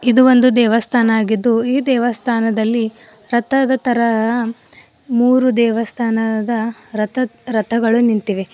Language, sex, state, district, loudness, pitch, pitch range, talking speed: Kannada, female, Karnataka, Bidar, -16 LUFS, 235 Hz, 225-245 Hz, 100 wpm